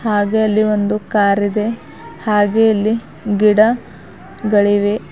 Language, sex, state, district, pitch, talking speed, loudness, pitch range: Kannada, female, Karnataka, Bidar, 210 Hz, 105 wpm, -15 LUFS, 205-220 Hz